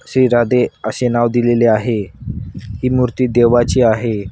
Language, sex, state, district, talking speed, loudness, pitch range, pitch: Marathi, male, Maharashtra, Washim, 140 wpm, -15 LUFS, 110-125 Hz, 120 Hz